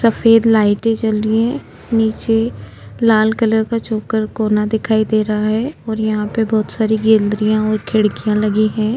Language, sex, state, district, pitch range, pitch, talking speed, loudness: Hindi, female, Maharashtra, Chandrapur, 215-225 Hz, 220 Hz, 165 wpm, -16 LUFS